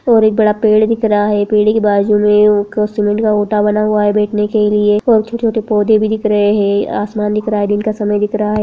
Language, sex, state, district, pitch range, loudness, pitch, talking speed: Hindi, female, Bihar, Madhepura, 210-215 Hz, -13 LUFS, 210 Hz, 255 wpm